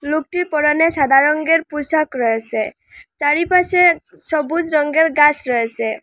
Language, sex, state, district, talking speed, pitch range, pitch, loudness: Bengali, female, Assam, Hailakandi, 110 wpm, 275-325 Hz, 300 Hz, -16 LUFS